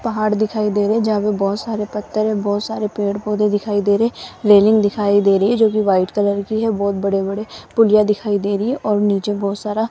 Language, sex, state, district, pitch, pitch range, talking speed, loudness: Hindi, female, Rajasthan, Jaipur, 210 Hz, 205-215 Hz, 240 wpm, -17 LUFS